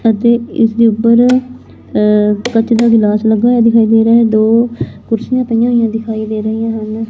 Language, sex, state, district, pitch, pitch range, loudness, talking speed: Punjabi, female, Punjab, Fazilka, 225 Hz, 220-235 Hz, -12 LUFS, 160 wpm